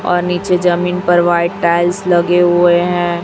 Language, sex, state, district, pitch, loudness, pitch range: Hindi, female, Chhattisgarh, Raipur, 175 Hz, -13 LUFS, 175-180 Hz